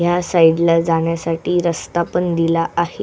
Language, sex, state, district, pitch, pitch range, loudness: Marathi, female, Maharashtra, Solapur, 170 Hz, 165-175 Hz, -17 LUFS